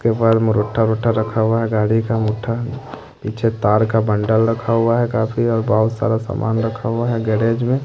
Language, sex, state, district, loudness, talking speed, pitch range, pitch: Hindi, male, Bihar, Katihar, -18 LUFS, 170 wpm, 110-115 Hz, 115 Hz